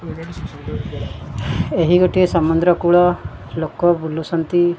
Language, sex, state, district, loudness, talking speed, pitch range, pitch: Odia, female, Odisha, Khordha, -18 LUFS, 65 wpm, 160-175 Hz, 175 Hz